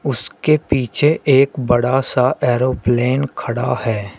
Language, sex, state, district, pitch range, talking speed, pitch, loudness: Hindi, male, Uttar Pradesh, Shamli, 120-135 Hz, 115 wpm, 130 Hz, -17 LUFS